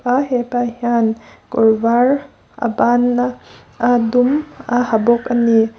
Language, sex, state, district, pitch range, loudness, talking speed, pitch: Mizo, female, Mizoram, Aizawl, 230-250 Hz, -16 LUFS, 145 wpm, 245 Hz